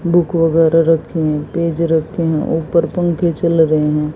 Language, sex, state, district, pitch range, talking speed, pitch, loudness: Hindi, female, Haryana, Jhajjar, 160-170 Hz, 175 wpm, 165 Hz, -15 LUFS